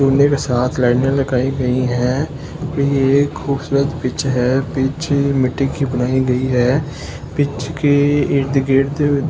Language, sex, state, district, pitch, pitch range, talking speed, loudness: Hindi, male, Delhi, New Delhi, 135 Hz, 130-140 Hz, 135 wpm, -17 LUFS